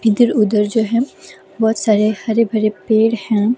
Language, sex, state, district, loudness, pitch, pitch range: Hindi, female, Himachal Pradesh, Shimla, -16 LUFS, 220 Hz, 215-230 Hz